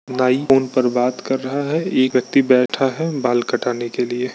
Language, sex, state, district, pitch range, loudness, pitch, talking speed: Hindi, male, Bihar, Bhagalpur, 125-135 Hz, -18 LUFS, 130 Hz, 205 wpm